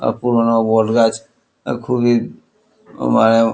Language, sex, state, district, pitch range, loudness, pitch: Bengali, male, West Bengal, Kolkata, 110-120 Hz, -16 LUFS, 115 Hz